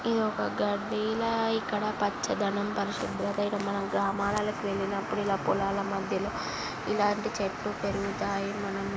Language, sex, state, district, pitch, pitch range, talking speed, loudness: Telugu, female, Andhra Pradesh, Guntur, 205 Hz, 200-215 Hz, 120 wpm, -30 LUFS